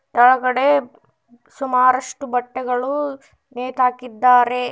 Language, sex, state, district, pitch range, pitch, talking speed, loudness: Kannada, female, Karnataka, Bidar, 245-265 Hz, 255 Hz, 50 wpm, -18 LUFS